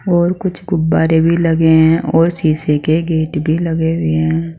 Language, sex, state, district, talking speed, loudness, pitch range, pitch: Hindi, female, Uttar Pradesh, Saharanpur, 185 wpm, -14 LUFS, 160-170 Hz, 160 Hz